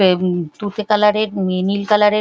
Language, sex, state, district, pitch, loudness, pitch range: Bengali, female, West Bengal, Paschim Medinipur, 205 Hz, -17 LUFS, 185-210 Hz